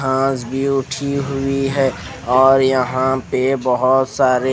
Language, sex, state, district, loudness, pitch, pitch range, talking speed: Hindi, male, Odisha, Khordha, -17 LUFS, 130 Hz, 130-135 Hz, 130 wpm